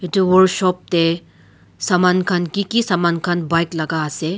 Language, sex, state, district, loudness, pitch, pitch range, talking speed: Nagamese, male, Nagaland, Dimapur, -18 LUFS, 175 Hz, 165-185 Hz, 150 wpm